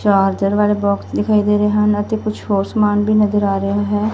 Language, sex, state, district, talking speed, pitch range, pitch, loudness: Punjabi, female, Punjab, Fazilka, 230 wpm, 200-210 Hz, 210 Hz, -16 LUFS